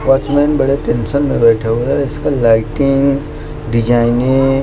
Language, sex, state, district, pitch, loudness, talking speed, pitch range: Hindi, male, Maharashtra, Mumbai Suburban, 135 Hz, -14 LUFS, 140 wpm, 115-140 Hz